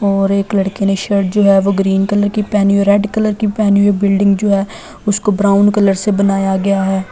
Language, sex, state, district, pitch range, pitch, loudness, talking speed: Hindi, female, Delhi, New Delhi, 195-205 Hz, 200 Hz, -13 LUFS, 245 wpm